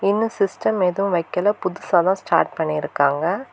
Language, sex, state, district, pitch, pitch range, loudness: Tamil, female, Tamil Nadu, Kanyakumari, 185 Hz, 165-200 Hz, -20 LUFS